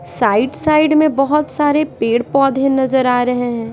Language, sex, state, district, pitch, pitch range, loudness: Hindi, female, Bihar, Patna, 275 Hz, 245-300 Hz, -15 LUFS